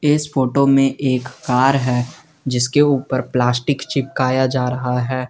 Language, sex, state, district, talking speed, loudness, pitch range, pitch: Hindi, male, Jharkhand, Garhwa, 145 wpm, -18 LUFS, 125-140 Hz, 130 Hz